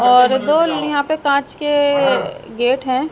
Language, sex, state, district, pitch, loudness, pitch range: Hindi, female, Haryana, Jhajjar, 280 Hz, -16 LUFS, 260-295 Hz